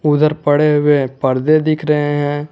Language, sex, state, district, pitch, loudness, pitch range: Hindi, male, Jharkhand, Garhwa, 150 Hz, -15 LUFS, 145-150 Hz